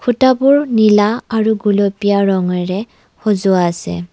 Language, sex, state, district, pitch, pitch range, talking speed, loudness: Assamese, female, Assam, Kamrup Metropolitan, 205 Hz, 190-220 Hz, 100 wpm, -14 LUFS